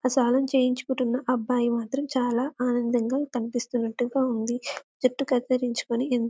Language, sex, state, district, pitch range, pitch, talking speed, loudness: Telugu, female, Telangana, Karimnagar, 240-260 Hz, 250 Hz, 125 wpm, -26 LUFS